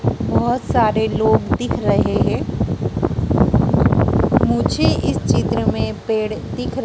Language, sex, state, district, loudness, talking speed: Hindi, female, Madhya Pradesh, Dhar, -18 LUFS, 115 wpm